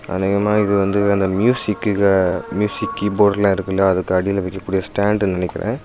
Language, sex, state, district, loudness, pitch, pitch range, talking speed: Tamil, male, Tamil Nadu, Kanyakumari, -18 LUFS, 100 Hz, 95-105 Hz, 145 wpm